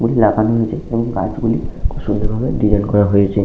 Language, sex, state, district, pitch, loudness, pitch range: Bengali, male, West Bengal, Malda, 105 Hz, -17 LUFS, 100-115 Hz